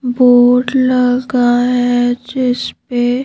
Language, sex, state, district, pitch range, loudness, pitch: Hindi, female, Madhya Pradesh, Bhopal, 245-250 Hz, -13 LUFS, 245 Hz